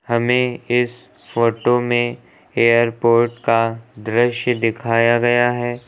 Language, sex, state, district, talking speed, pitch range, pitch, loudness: Hindi, male, Uttar Pradesh, Lucknow, 100 wpm, 115-120 Hz, 120 Hz, -17 LUFS